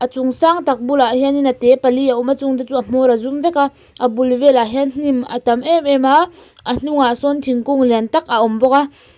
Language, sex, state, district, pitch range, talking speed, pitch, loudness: Mizo, female, Mizoram, Aizawl, 250-280 Hz, 235 wpm, 265 Hz, -15 LUFS